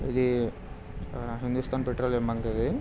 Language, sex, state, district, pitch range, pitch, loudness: Telugu, male, Andhra Pradesh, Krishna, 115-125 Hz, 120 Hz, -30 LUFS